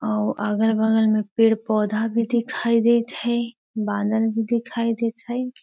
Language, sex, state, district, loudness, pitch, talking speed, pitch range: Magahi, female, Bihar, Gaya, -22 LUFS, 225 Hz, 140 wpm, 215-235 Hz